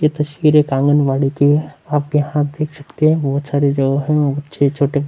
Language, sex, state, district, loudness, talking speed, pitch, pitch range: Hindi, male, Bihar, Vaishali, -16 LUFS, 210 wpm, 145 Hz, 140-150 Hz